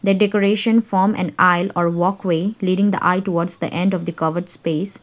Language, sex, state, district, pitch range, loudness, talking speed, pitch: English, female, Sikkim, Gangtok, 175-200 Hz, -19 LUFS, 205 wpm, 185 Hz